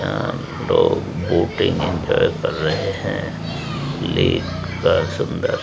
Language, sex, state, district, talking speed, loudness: Hindi, male, Rajasthan, Jaipur, 105 wpm, -20 LUFS